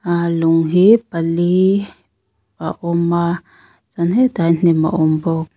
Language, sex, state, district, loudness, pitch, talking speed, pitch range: Mizo, female, Mizoram, Aizawl, -16 LUFS, 170 Hz, 150 wpm, 165-175 Hz